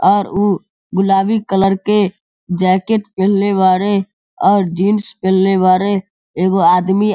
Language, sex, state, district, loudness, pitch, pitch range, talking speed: Hindi, male, Bihar, Sitamarhi, -14 LUFS, 195 Hz, 190-205 Hz, 125 wpm